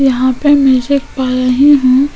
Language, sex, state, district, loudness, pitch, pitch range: Hindi, female, Goa, North and South Goa, -11 LUFS, 265 Hz, 255-280 Hz